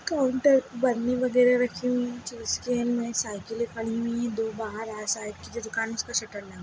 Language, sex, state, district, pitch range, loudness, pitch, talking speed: Hindi, female, Bihar, Begusarai, 225-245 Hz, -27 LUFS, 235 Hz, 200 wpm